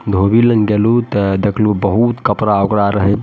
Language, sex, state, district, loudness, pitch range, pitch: Maithili, male, Bihar, Madhepura, -14 LUFS, 100-110 Hz, 105 Hz